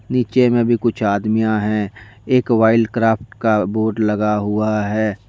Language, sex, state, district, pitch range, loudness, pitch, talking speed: Hindi, male, Jharkhand, Deoghar, 105-115 Hz, -17 LUFS, 110 Hz, 160 wpm